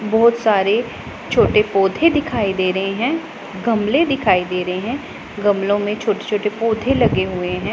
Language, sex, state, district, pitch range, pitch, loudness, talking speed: Hindi, female, Punjab, Pathankot, 195-235 Hz, 210 Hz, -18 LUFS, 165 wpm